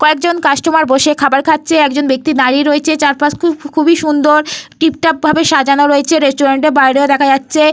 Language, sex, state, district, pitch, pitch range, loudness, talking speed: Bengali, female, Jharkhand, Jamtara, 300 Hz, 280-315 Hz, -11 LUFS, 165 wpm